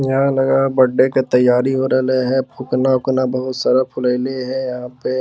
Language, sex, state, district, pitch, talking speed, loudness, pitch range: Magahi, male, Bihar, Lakhisarai, 130 Hz, 220 wpm, -17 LUFS, 125-130 Hz